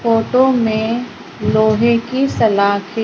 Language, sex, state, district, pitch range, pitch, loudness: Hindi, female, Maharashtra, Gondia, 220-245 Hz, 230 Hz, -15 LUFS